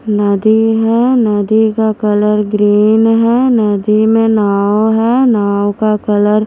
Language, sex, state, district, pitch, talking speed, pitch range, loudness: Hindi, female, Himachal Pradesh, Shimla, 215 Hz, 140 wpm, 210-225 Hz, -11 LUFS